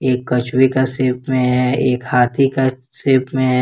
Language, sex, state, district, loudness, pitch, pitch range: Hindi, male, Jharkhand, Ranchi, -16 LUFS, 130 Hz, 125-130 Hz